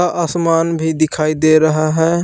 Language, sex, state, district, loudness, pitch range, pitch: Hindi, male, Jharkhand, Palamu, -15 LUFS, 155-170 Hz, 160 Hz